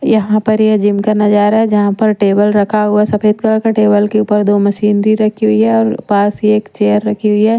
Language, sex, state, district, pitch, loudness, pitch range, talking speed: Hindi, female, Haryana, Rohtak, 210 Hz, -12 LUFS, 205-215 Hz, 255 wpm